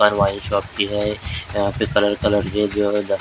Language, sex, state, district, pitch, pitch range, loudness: Hindi, male, Maharashtra, Gondia, 105 Hz, 100-105 Hz, -20 LUFS